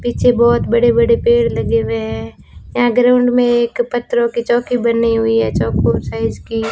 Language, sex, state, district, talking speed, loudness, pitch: Hindi, female, Rajasthan, Bikaner, 195 wpm, -15 LUFS, 235 Hz